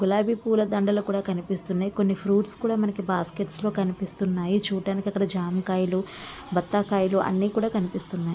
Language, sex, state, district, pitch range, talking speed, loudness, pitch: Telugu, female, Andhra Pradesh, Visakhapatnam, 185-205 Hz, 150 wpm, -26 LUFS, 195 Hz